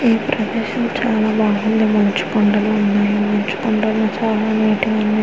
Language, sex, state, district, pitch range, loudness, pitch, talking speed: Telugu, female, Andhra Pradesh, Manyam, 210-220 Hz, -17 LUFS, 215 Hz, 150 wpm